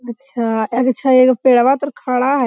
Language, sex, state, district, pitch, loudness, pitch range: Magahi, female, Bihar, Lakhisarai, 255 Hz, -15 LUFS, 245-265 Hz